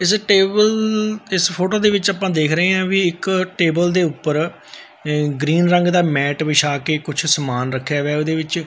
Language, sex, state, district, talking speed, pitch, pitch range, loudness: Punjabi, male, Punjab, Fazilka, 185 wpm, 170 Hz, 150-190 Hz, -17 LUFS